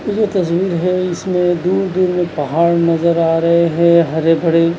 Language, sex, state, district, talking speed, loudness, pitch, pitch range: Hindi, male, Punjab, Kapurthala, 150 wpm, -15 LUFS, 170 Hz, 165-180 Hz